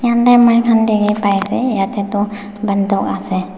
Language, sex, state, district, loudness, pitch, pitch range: Nagamese, female, Nagaland, Dimapur, -15 LUFS, 205 Hz, 200-230 Hz